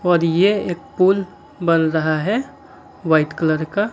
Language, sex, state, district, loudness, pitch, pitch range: Hindi, male, Bihar, Kaimur, -18 LUFS, 175 Hz, 160-200 Hz